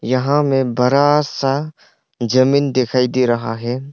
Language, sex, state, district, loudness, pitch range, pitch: Hindi, male, Arunachal Pradesh, Longding, -16 LUFS, 125-140 Hz, 130 Hz